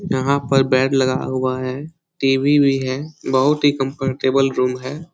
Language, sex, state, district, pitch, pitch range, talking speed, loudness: Hindi, male, Bihar, Lakhisarai, 135 Hz, 130-140 Hz, 165 wpm, -18 LUFS